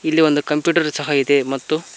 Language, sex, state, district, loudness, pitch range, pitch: Kannada, male, Karnataka, Koppal, -18 LUFS, 145-155 Hz, 150 Hz